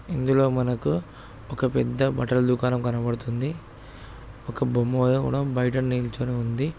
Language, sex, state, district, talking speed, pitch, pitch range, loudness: Telugu, male, Andhra Pradesh, Guntur, 115 wpm, 125 Hz, 120-135 Hz, -25 LUFS